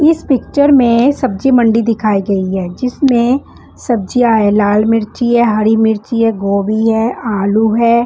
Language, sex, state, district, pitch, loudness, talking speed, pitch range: Hindi, female, Bihar, West Champaran, 225 Hz, -12 LUFS, 155 wpm, 210-245 Hz